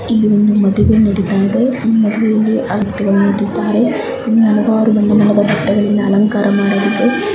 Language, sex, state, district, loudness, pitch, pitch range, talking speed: Kannada, female, Karnataka, Bijapur, -13 LUFS, 210 Hz, 205-220 Hz, 115 wpm